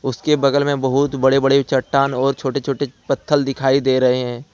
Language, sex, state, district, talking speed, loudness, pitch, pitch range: Hindi, male, Jharkhand, Ranchi, 200 wpm, -17 LUFS, 135 Hz, 130-140 Hz